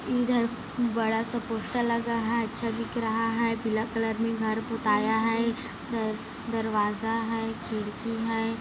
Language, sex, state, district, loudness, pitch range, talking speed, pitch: Hindi, female, Chhattisgarh, Kabirdham, -28 LUFS, 225-230 Hz, 145 wpm, 230 Hz